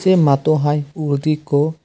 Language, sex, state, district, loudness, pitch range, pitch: Chakma, male, Tripura, West Tripura, -17 LUFS, 145-155 Hz, 150 Hz